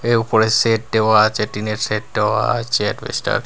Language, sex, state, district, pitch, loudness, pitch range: Bengali, male, Bihar, Katihar, 110 Hz, -17 LUFS, 105-115 Hz